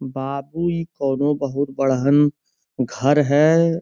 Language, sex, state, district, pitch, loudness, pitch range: Bhojpuri, male, Uttar Pradesh, Gorakhpur, 140 Hz, -19 LUFS, 135-150 Hz